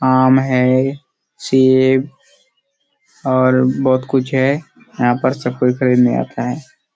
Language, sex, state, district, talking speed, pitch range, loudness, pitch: Hindi, male, Bihar, Kishanganj, 120 wpm, 130-140 Hz, -15 LUFS, 130 Hz